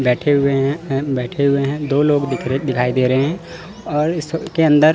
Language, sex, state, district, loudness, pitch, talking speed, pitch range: Hindi, male, Chandigarh, Chandigarh, -18 LUFS, 145 Hz, 230 wpm, 135-155 Hz